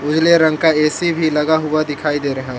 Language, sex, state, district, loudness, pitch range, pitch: Hindi, male, Jharkhand, Palamu, -15 LUFS, 150-160 Hz, 155 Hz